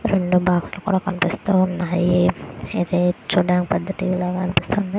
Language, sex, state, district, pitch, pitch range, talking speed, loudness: Telugu, female, Andhra Pradesh, Guntur, 180 Hz, 180-190 Hz, 120 wpm, -20 LUFS